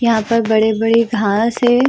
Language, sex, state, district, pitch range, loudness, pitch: Hindi, female, Bihar, Samastipur, 220-235 Hz, -15 LUFS, 230 Hz